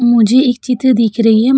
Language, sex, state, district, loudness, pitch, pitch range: Hindi, female, Uttar Pradesh, Jalaun, -11 LUFS, 240 Hz, 230-255 Hz